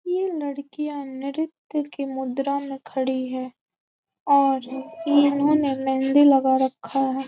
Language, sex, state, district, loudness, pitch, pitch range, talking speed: Hindi, female, Bihar, Gopalganj, -23 LUFS, 275 Hz, 265-290 Hz, 115 wpm